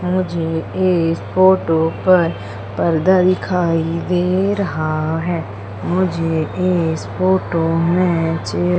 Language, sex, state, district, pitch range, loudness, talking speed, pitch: Hindi, female, Madhya Pradesh, Umaria, 160-185 Hz, -17 LUFS, 95 wpm, 165 Hz